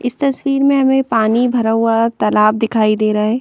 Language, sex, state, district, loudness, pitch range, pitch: Hindi, female, Madhya Pradesh, Bhopal, -14 LUFS, 220-265 Hz, 230 Hz